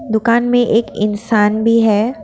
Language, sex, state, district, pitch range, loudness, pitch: Hindi, female, Assam, Kamrup Metropolitan, 210-230 Hz, -14 LUFS, 220 Hz